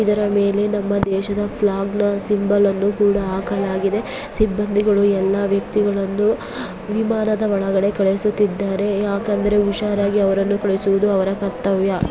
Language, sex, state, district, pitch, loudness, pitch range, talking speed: Kannada, female, Karnataka, Bellary, 200 Hz, -19 LUFS, 195-210 Hz, 115 wpm